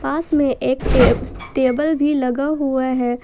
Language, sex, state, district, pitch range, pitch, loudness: Hindi, female, Jharkhand, Ranchi, 255-295 Hz, 270 Hz, -18 LUFS